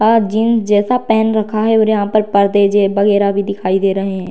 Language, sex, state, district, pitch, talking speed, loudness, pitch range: Hindi, female, Bihar, Darbhanga, 205 Hz, 235 wpm, -14 LUFS, 200-220 Hz